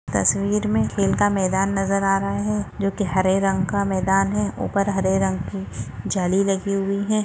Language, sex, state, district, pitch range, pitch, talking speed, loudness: Hindi, female, Goa, North and South Goa, 190-200 Hz, 195 Hz, 200 wpm, -21 LUFS